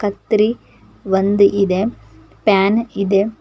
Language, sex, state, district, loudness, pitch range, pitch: Kannada, female, Karnataka, Koppal, -16 LUFS, 190-210 Hz, 200 Hz